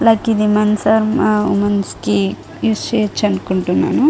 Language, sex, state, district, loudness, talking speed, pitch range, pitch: Telugu, female, Andhra Pradesh, Guntur, -16 LUFS, 115 wpm, 195-220 Hz, 210 Hz